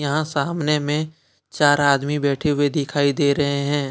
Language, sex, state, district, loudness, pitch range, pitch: Hindi, male, Jharkhand, Deoghar, -20 LUFS, 140-150 Hz, 145 Hz